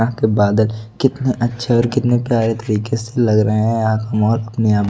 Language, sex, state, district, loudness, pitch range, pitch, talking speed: Hindi, male, Delhi, New Delhi, -17 LUFS, 110-120 Hz, 115 Hz, 195 wpm